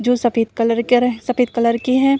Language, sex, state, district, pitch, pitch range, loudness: Hindi, female, Bihar, Saran, 245 Hz, 235-250 Hz, -17 LUFS